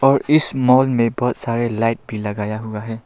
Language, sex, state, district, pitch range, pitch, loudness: Hindi, male, Arunachal Pradesh, Lower Dibang Valley, 110-130 Hz, 115 Hz, -18 LUFS